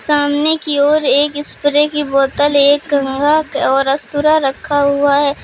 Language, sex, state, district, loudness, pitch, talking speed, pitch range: Hindi, female, Uttar Pradesh, Lucknow, -14 LUFS, 290 Hz, 155 wpm, 280-295 Hz